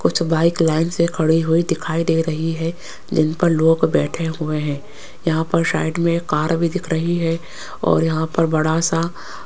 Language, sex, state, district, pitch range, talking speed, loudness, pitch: Hindi, female, Rajasthan, Jaipur, 160-170 Hz, 205 wpm, -19 LUFS, 165 Hz